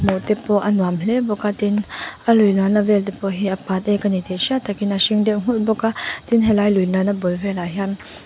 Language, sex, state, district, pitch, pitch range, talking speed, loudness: Mizo, female, Mizoram, Aizawl, 205 Hz, 195-215 Hz, 260 wpm, -19 LUFS